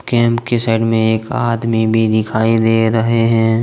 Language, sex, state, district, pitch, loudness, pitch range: Hindi, male, Jharkhand, Deoghar, 115 Hz, -14 LUFS, 110-115 Hz